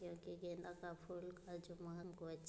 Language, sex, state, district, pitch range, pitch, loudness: Hindi, female, Bihar, Muzaffarpur, 170-175 Hz, 175 Hz, -52 LUFS